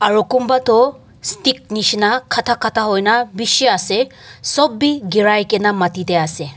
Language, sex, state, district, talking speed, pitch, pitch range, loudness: Nagamese, male, Nagaland, Dimapur, 175 wpm, 220 Hz, 205-255 Hz, -16 LUFS